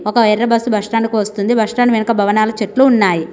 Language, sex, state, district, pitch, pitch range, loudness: Telugu, female, Telangana, Mahabubabad, 220 Hz, 210-230 Hz, -14 LUFS